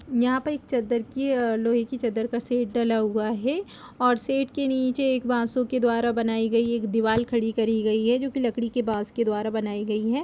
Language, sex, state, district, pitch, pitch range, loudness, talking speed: Hindi, female, Uttar Pradesh, Jalaun, 235 Hz, 225-255 Hz, -25 LUFS, 225 wpm